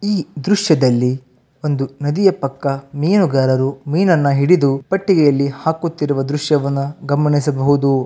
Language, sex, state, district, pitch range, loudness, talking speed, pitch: Kannada, male, Karnataka, Raichur, 135-160 Hz, -16 LUFS, 80 wpm, 145 Hz